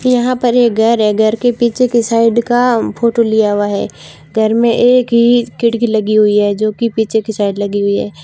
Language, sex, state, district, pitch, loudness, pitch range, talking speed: Hindi, female, Rajasthan, Barmer, 230 Hz, -13 LUFS, 215-235 Hz, 225 wpm